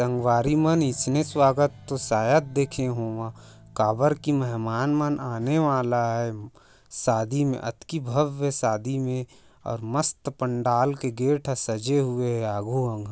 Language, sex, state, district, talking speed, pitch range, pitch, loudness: Chhattisgarhi, male, Chhattisgarh, Raigarh, 135 wpm, 115-140 Hz, 130 Hz, -25 LUFS